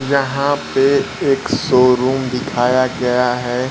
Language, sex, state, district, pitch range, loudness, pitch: Hindi, male, Bihar, Kaimur, 125-135 Hz, -16 LUFS, 130 Hz